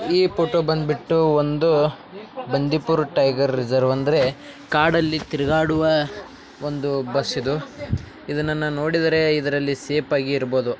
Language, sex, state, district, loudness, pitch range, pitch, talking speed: Kannada, male, Karnataka, Bijapur, -21 LUFS, 140-160 Hz, 150 Hz, 100 wpm